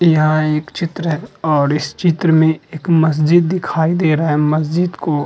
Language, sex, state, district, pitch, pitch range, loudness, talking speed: Hindi, male, Uttar Pradesh, Muzaffarnagar, 160 Hz, 155-170 Hz, -15 LUFS, 195 wpm